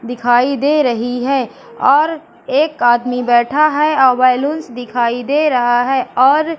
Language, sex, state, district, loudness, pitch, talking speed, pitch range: Hindi, female, Madhya Pradesh, Katni, -14 LUFS, 260 Hz, 135 wpm, 245-295 Hz